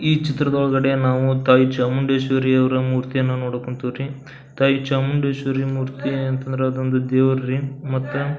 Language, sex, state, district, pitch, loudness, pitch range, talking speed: Kannada, male, Karnataka, Belgaum, 135 Hz, -20 LUFS, 130-135 Hz, 145 wpm